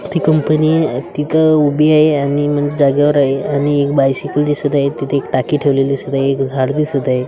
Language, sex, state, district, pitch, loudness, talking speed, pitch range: Marathi, male, Maharashtra, Washim, 145 Hz, -14 LUFS, 200 wpm, 140-150 Hz